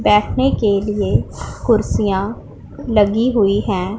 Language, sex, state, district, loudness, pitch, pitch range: Hindi, female, Punjab, Pathankot, -17 LUFS, 200 Hz, 190-210 Hz